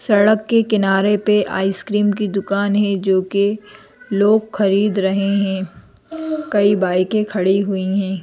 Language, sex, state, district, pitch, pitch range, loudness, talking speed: Hindi, female, Madhya Pradesh, Bhopal, 200 Hz, 195-210 Hz, -17 LUFS, 140 wpm